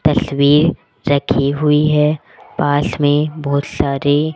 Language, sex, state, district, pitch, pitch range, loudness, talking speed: Hindi, female, Rajasthan, Jaipur, 145 Hz, 140-150 Hz, -15 LUFS, 110 wpm